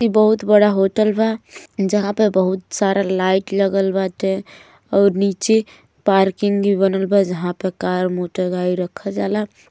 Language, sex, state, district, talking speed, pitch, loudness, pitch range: Bhojpuri, female, Uttar Pradesh, Gorakhpur, 150 wpm, 195 Hz, -18 LUFS, 190-205 Hz